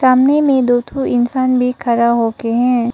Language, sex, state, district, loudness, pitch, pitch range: Hindi, female, Arunachal Pradesh, Papum Pare, -14 LUFS, 250 Hz, 235-260 Hz